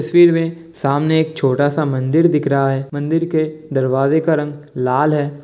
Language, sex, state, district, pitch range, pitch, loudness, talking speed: Hindi, male, Bihar, Kishanganj, 140-160 Hz, 150 Hz, -17 LUFS, 190 wpm